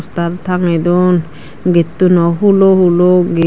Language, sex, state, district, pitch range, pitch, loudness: Chakma, female, Tripura, Dhalai, 170-180 Hz, 175 Hz, -12 LUFS